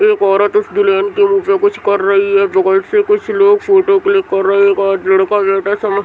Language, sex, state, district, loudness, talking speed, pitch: Hindi, female, Bihar, Madhepura, -12 LUFS, 200 wpm, 205 Hz